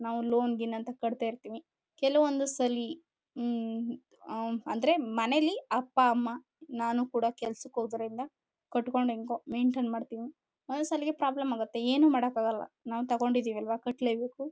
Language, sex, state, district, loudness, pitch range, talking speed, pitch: Kannada, female, Karnataka, Chamarajanagar, -31 LUFS, 230-270 Hz, 135 wpm, 240 Hz